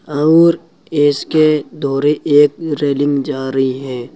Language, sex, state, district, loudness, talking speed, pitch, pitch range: Hindi, male, Uttar Pradesh, Saharanpur, -14 LUFS, 115 wpm, 145 Hz, 135-155 Hz